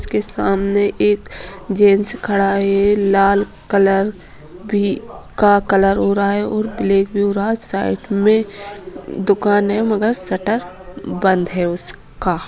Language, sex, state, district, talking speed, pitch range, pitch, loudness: Hindi, female, Bihar, Gopalganj, 140 wpm, 195-205 Hz, 200 Hz, -17 LUFS